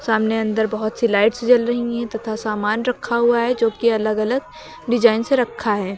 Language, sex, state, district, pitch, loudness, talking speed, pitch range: Hindi, female, Uttar Pradesh, Lucknow, 230 Hz, -19 LUFS, 210 wpm, 215-240 Hz